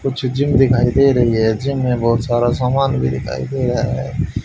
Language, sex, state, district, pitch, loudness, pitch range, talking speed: Hindi, male, Haryana, Jhajjar, 125 Hz, -16 LUFS, 115-135 Hz, 215 wpm